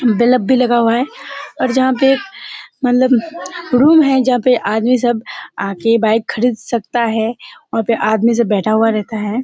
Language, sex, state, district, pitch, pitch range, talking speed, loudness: Hindi, female, Bihar, Kishanganj, 240 Hz, 225-255 Hz, 180 wpm, -14 LUFS